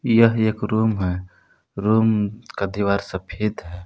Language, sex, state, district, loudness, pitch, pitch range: Hindi, male, Jharkhand, Palamu, -21 LUFS, 105 Hz, 95-110 Hz